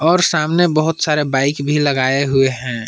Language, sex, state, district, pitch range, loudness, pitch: Hindi, male, Jharkhand, Palamu, 135-160 Hz, -16 LUFS, 145 Hz